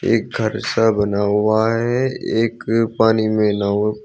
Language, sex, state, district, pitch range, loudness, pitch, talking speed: Hindi, male, Uttar Pradesh, Shamli, 105-115 Hz, -18 LUFS, 110 Hz, 150 wpm